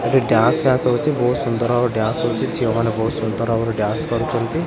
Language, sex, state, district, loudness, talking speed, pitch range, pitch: Odia, male, Odisha, Khordha, -19 LUFS, 205 wpm, 115-125 Hz, 115 Hz